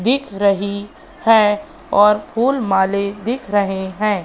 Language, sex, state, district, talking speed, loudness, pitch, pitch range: Hindi, female, Madhya Pradesh, Katni, 115 wpm, -17 LUFS, 205 Hz, 200-230 Hz